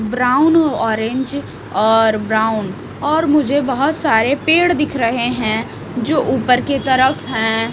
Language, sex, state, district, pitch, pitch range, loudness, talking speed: Hindi, female, Odisha, Malkangiri, 250 Hz, 225-285 Hz, -16 LUFS, 130 wpm